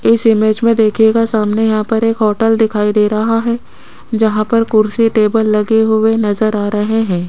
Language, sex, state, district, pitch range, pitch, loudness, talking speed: Hindi, female, Rajasthan, Jaipur, 215-225 Hz, 220 Hz, -13 LUFS, 190 wpm